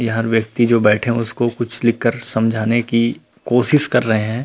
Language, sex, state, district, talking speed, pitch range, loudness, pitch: Chhattisgarhi, male, Chhattisgarh, Rajnandgaon, 200 wpm, 115-120 Hz, -16 LUFS, 115 Hz